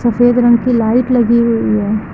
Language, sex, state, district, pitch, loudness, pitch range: Hindi, female, Uttar Pradesh, Lucknow, 235 Hz, -12 LUFS, 225-245 Hz